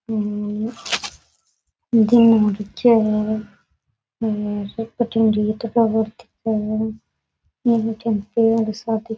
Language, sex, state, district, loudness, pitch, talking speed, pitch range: Rajasthani, female, Rajasthan, Nagaur, -20 LUFS, 220 Hz, 45 wpm, 215-225 Hz